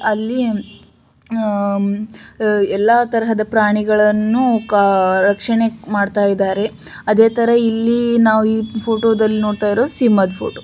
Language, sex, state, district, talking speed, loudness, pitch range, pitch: Kannada, female, Karnataka, Shimoga, 115 wpm, -16 LUFS, 205-230 Hz, 220 Hz